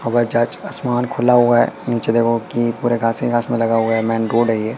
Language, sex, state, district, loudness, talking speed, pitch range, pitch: Hindi, male, Madhya Pradesh, Katni, -17 LUFS, 250 wpm, 115-120 Hz, 115 Hz